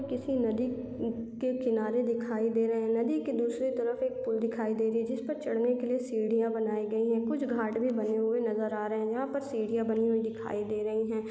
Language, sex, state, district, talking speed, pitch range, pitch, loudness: Hindi, female, Chhattisgarh, Raigarh, 245 wpm, 225-245 Hz, 230 Hz, -31 LUFS